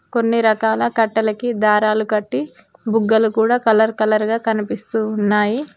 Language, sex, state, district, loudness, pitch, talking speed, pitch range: Telugu, female, Telangana, Mahabubabad, -17 LUFS, 220 Hz, 125 wpm, 215-225 Hz